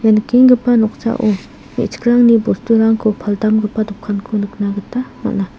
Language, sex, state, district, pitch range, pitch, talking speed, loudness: Garo, female, Meghalaya, South Garo Hills, 205-230 Hz, 215 Hz, 95 wpm, -15 LUFS